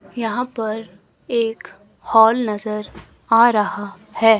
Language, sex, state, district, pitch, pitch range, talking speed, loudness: Hindi, female, Himachal Pradesh, Shimla, 225 Hz, 210-230 Hz, 110 wpm, -18 LUFS